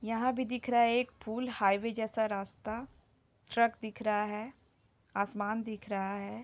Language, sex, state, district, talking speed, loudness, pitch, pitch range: Hindi, female, Bihar, Jahanabad, 170 wpm, -33 LUFS, 220 Hz, 210-235 Hz